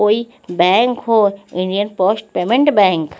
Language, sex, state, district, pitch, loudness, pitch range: Hindi, female, Chandigarh, Chandigarh, 210 Hz, -15 LUFS, 190-230 Hz